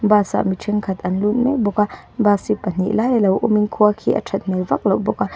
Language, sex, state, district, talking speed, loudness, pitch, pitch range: Mizo, female, Mizoram, Aizawl, 290 wpm, -19 LUFS, 210 Hz, 190-215 Hz